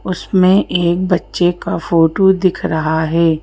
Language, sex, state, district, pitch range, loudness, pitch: Hindi, female, Madhya Pradesh, Bhopal, 165-185 Hz, -14 LUFS, 175 Hz